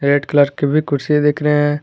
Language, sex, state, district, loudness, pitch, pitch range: Hindi, male, Jharkhand, Garhwa, -16 LUFS, 145 Hz, 145-150 Hz